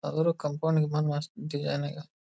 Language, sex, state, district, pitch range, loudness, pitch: Kannada, male, Karnataka, Belgaum, 145-160 Hz, -30 LUFS, 150 Hz